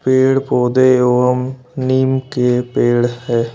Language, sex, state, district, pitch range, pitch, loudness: Hindi, male, Madhya Pradesh, Bhopal, 125-130 Hz, 125 Hz, -15 LUFS